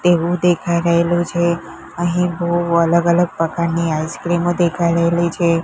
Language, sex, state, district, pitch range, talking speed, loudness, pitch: Gujarati, female, Gujarat, Gandhinagar, 170-175 Hz, 140 wpm, -17 LUFS, 170 Hz